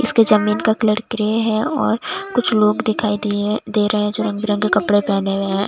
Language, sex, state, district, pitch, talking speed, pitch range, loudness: Hindi, female, Bihar, West Champaran, 210 Hz, 245 wpm, 210-220 Hz, -18 LUFS